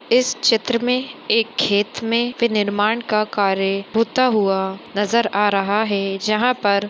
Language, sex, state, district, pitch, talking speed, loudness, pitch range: Hindi, male, Bihar, Madhepura, 215 Hz, 165 wpm, -19 LUFS, 200-235 Hz